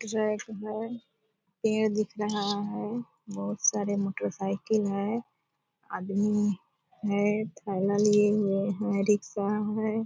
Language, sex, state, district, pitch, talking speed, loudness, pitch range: Hindi, female, Bihar, Purnia, 210 Hz, 115 wpm, -29 LUFS, 200-215 Hz